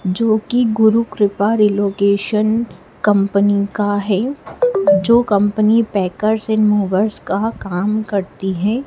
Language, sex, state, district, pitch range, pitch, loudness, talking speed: Hindi, female, Madhya Pradesh, Dhar, 200-220 Hz, 210 Hz, -16 LUFS, 115 wpm